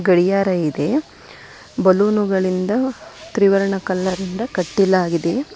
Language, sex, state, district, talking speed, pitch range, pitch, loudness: Kannada, female, Karnataka, Bangalore, 65 wpm, 185-210 Hz, 195 Hz, -18 LUFS